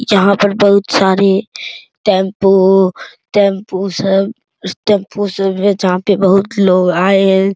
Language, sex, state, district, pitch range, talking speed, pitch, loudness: Hindi, male, Bihar, Araria, 190-200 Hz, 125 wpm, 195 Hz, -12 LUFS